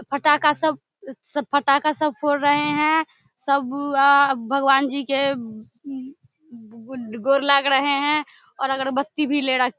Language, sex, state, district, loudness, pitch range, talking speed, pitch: Maithili, female, Bihar, Samastipur, -20 LUFS, 270-290 Hz, 145 wpm, 275 Hz